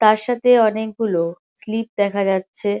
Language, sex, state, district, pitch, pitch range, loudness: Bengali, female, West Bengal, Kolkata, 215 Hz, 200-225 Hz, -19 LUFS